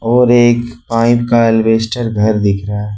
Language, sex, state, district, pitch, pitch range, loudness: Hindi, male, Jharkhand, Ranchi, 115 Hz, 105-120 Hz, -12 LUFS